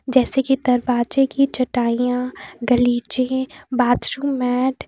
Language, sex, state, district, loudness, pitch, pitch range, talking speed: Hindi, female, Jharkhand, Deoghar, -20 LUFS, 255 Hz, 245-265 Hz, 100 wpm